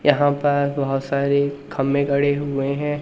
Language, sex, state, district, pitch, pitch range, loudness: Hindi, male, Madhya Pradesh, Umaria, 140 Hz, 140-145 Hz, -21 LUFS